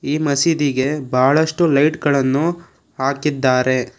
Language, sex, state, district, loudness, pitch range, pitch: Kannada, male, Karnataka, Bangalore, -17 LUFS, 130-155 Hz, 140 Hz